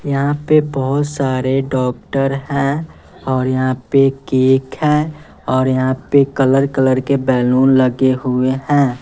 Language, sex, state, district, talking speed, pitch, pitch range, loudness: Hindi, male, Bihar, West Champaran, 140 wpm, 135 Hz, 130-140 Hz, -16 LUFS